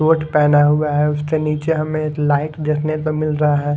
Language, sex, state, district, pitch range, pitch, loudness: Hindi, male, Odisha, Khordha, 150-155 Hz, 150 Hz, -17 LUFS